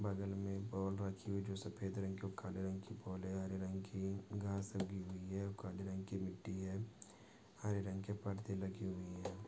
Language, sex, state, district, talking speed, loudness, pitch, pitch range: Hindi, male, Maharashtra, Pune, 230 wpm, -45 LUFS, 95 Hz, 95-100 Hz